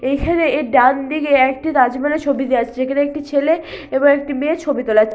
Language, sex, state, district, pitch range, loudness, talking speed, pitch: Bengali, female, West Bengal, Malda, 260-295 Hz, -16 LUFS, 200 wpm, 280 Hz